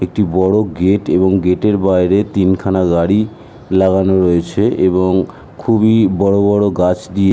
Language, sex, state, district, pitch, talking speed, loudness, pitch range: Bengali, male, West Bengal, North 24 Parganas, 95 Hz, 145 wpm, -13 LUFS, 90-100 Hz